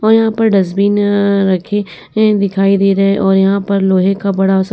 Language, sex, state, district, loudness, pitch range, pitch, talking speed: Hindi, female, Uttar Pradesh, Etah, -13 LUFS, 195-205 Hz, 195 Hz, 205 wpm